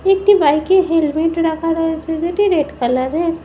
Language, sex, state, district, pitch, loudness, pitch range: Bengali, female, West Bengal, Jhargram, 330 Hz, -16 LUFS, 315-350 Hz